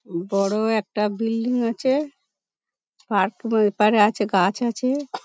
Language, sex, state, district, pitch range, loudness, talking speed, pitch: Bengali, female, West Bengal, Paschim Medinipur, 205-245 Hz, -22 LUFS, 125 wpm, 220 Hz